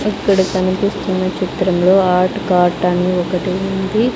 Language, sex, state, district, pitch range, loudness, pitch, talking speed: Telugu, female, Andhra Pradesh, Sri Satya Sai, 180-195 Hz, -16 LUFS, 185 Hz, 115 wpm